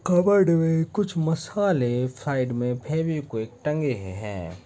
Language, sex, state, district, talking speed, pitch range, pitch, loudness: Hindi, male, Chhattisgarh, Jashpur, 130 wpm, 120-165 Hz, 150 Hz, -24 LUFS